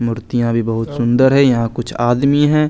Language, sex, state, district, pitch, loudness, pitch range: Hindi, male, Chandigarh, Chandigarh, 120 Hz, -15 LUFS, 115-140 Hz